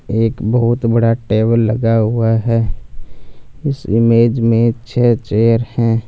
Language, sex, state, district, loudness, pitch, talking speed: Hindi, male, Punjab, Fazilka, -14 LUFS, 115 Hz, 130 wpm